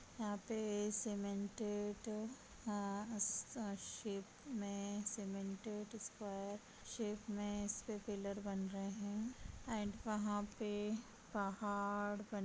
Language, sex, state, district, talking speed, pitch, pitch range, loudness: Hindi, female, Bihar, Vaishali, 105 wpm, 205 Hz, 200-215 Hz, -44 LUFS